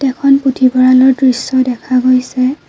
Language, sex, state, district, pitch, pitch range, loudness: Assamese, female, Assam, Kamrup Metropolitan, 255 Hz, 255-265 Hz, -11 LUFS